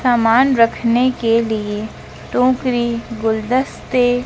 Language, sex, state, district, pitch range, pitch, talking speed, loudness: Hindi, female, Madhya Pradesh, Dhar, 225-250 Hz, 235 Hz, 85 wpm, -17 LUFS